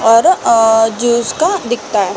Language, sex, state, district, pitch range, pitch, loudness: Hindi, female, Chhattisgarh, Balrampur, 225-315 Hz, 235 Hz, -12 LUFS